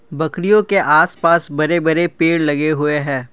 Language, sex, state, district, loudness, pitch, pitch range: Hindi, male, Assam, Kamrup Metropolitan, -15 LUFS, 160 Hz, 150-170 Hz